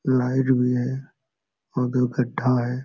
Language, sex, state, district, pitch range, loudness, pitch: Hindi, male, Bihar, Supaul, 125-130 Hz, -23 LUFS, 125 Hz